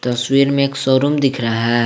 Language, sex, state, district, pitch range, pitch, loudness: Hindi, male, Jharkhand, Garhwa, 120-140 Hz, 135 Hz, -16 LUFS